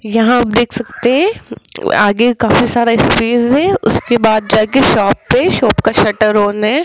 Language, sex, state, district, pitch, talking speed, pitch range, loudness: Hindi, female, Rajasthan, Jaipur, 235 Hz, 175 wpm, 215-245 Hz, -12 LUFS